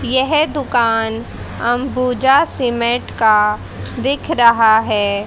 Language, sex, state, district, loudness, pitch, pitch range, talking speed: Hindi, female, Haryana, Jhajjar, -15 LUFS, 240 Hz, 225-265 Hz, 90 wpm